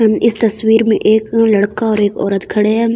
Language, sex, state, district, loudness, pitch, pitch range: Hindi, female, Delhi, New Delhi, -13 LUFS, 220 Hz, 210-225 Hz